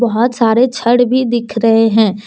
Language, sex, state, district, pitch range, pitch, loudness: Hindi, female, Jharkhand, Deoghar, 225-245 Hz, 235 Hz, -12 LUFS